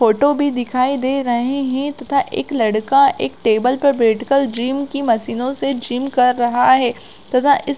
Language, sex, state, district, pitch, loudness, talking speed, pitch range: Hindi, female, Chhattisgarh, Korba, 260 Hz, -17 LUFS, 185 wpm, 240-275 Hz